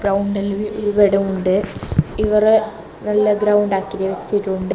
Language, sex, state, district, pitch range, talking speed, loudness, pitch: Malayalam, female, Kerala, Kasaragod, 195-210 Hz, 90 wpm, -18 LUFS, 205 Hz